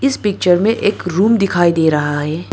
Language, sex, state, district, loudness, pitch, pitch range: Hindi, female, Arunachal Pradesh, Lower Dibang Valley, -15 LUFS, 185 Hz, 165-215 Hz